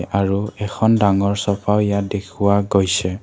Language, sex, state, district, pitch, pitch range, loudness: Assamese, male, Assam, Kamrup Metropolitan, 100 Hz, 100-105 Hz, -18 LUFS